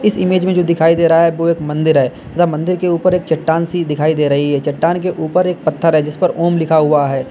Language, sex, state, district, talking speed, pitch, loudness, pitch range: Hindi, male, Uttar Pradesh, Lalitpur, 280 wpm, 165 Hz, -14 LUFS, 155-175 Hz